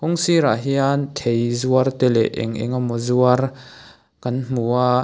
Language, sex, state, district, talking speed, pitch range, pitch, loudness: Mizo, male, Mizoram, Aizawl, 165 wpm, 120-135 Hz, 125 Hz, -19 LUFS